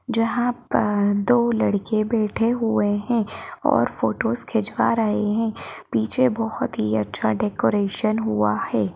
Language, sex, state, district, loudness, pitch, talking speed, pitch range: Hindi, female, Madhya Pradesh, Bhopal, -21 LUFS, 220 Hz, 125 wpm, 205-230 Hz